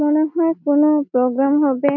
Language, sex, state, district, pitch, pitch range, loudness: Bengali, female, West Bengal, Malda, 290 Hz, 280-305 Hz, -17 LUFS